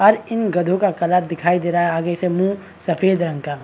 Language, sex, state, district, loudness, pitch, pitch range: Hindi, male, Bihar, Kishanganj, -19 LUFS, 175 Hz, 170-190 Hz